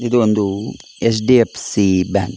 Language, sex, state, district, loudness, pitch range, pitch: Kannada, male, Karnataka, Dakshina Kannada, -16 LUFS, 100-115 Hz, 105 Hz